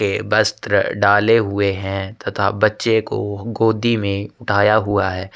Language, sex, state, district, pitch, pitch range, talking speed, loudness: Hindi, male, Chhattisgarh, Sukma, 100 Hz, 100-110 Hz, 145 wpm, -18 LUFS